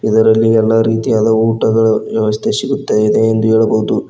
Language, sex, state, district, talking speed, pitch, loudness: Kannada, male, Karnataka, Koppal, 115 wpm, 110 Hz, -13 LUFS